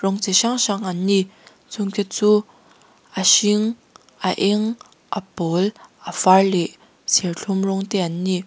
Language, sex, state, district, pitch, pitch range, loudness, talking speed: Mizo, female, Mizoram, Aizawl, 195 Hz, 185-210 Hz, -20 LUFS, 165 wpm